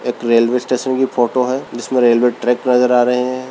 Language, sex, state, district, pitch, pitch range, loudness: Hindi, male, Rajasthan, Churu, 125 Hz, 120-130 Hz, -15 LUFS